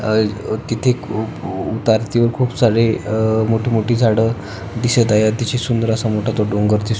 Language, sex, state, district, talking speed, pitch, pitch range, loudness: Marathi, male, Maharashtra, Pune, 145 wpm, 110 Hz, 110-120 Hz, -17 LUFS